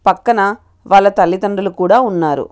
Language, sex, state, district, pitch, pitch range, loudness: Telugu, female, Telangana, Karimnagar, 195 Hz, 185-205 Hz, -13 LUFS